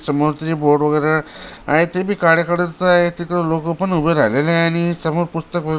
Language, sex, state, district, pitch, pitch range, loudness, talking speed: Marathi, male, Maharashtra, Chandrapur, 165 Hz, 155-175 Hz, -17 LUFS, 215 wpm